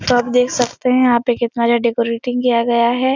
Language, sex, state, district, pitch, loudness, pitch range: Hindi, female, Bihar, Supaul, 245 Hz, -16 LUFS, 235-250 Hz